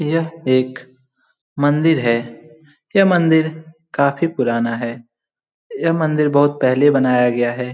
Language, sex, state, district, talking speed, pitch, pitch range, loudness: Hindi, male, Bihar, Lakhisarai, 125 wpm, 140 Hz, 125-160 Hz, -17 LUFS